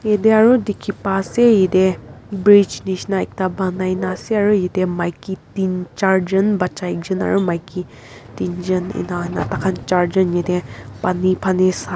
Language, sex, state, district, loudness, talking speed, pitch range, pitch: Nagamese, female, Nagaland, Kohima, -18 LUFS, 150 wpm, 180-195 Hz, 185 Hz